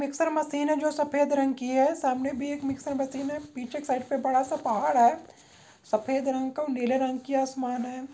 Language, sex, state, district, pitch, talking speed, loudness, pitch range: Maithili, female, Bihar, Begusarai, 270 Hz, 230 wpm, -27 LUFS, 260-290 Hz